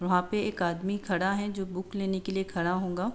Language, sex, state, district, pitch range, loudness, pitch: Hindi, female, Uttar Pradesh, Jalaun, 180-200 Hz, -30 LUFS, 190 Hz